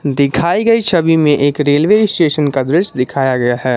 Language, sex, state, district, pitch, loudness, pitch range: Hindi, male, Jharkhand, Garhwa, 145 Hz, -13 LUFS, 135-170 Hz